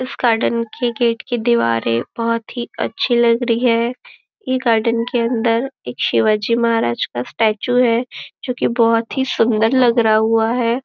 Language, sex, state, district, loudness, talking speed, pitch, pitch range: Hindi, female, Maharashtra, Nagpur, -17 LUFS, 165 wpm, 230 Hz, 225-240 Hz